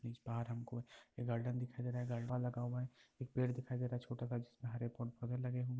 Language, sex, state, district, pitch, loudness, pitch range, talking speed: Hindi, male, Bihar, Lakhisarai, 125 Hz, -43 LUFS, 120-125 Hz, 270 wpm